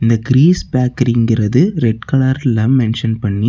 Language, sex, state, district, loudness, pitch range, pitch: Tamil, male, Tamil Nadu, Namakkal, -14 LUFS, 115-130 Hz, 120 Hz